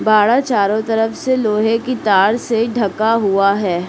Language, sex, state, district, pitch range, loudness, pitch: Hindi, male, Uttar Pradesh, Deoria, 205-230 Hz, -15 LUFS, 220 Hz